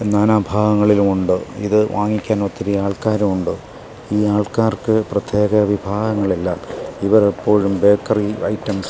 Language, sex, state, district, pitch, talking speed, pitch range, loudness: Malayalam, male, Kerala, Kasaragod, 105 Hz, 115 wpm, 100-105 Hz, -17 LUFS